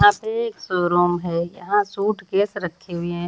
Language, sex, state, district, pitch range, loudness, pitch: Hindi, female, Bihar, Samastipur, 175-205 Hz, -22 LUFS, 185 Hz